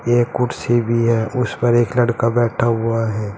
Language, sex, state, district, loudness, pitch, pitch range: Hindi, male, Uttar Pradesh, Saharanpur, -18 LUFS, 120 Hz, 115-120 Hz